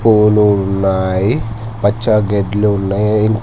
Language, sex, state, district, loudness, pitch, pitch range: Telugu, male, Telangana, Hyderabad, -14 LUFS, 105 Hz, 100-110 Hz